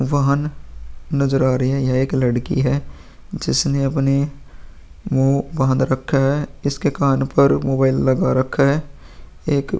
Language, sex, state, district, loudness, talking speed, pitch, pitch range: Hindi, male, Bihar, Vaishali, -19 LUFS, 145 wpm, 135 Hz, 130-140 Hz